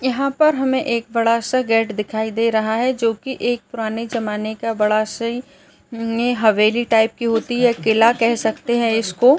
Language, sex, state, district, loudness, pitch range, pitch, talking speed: Hindi, male, Maharashtra, Nagpur, -18 LUFS, 220-245 Hz, 230 Hz, 205 wpm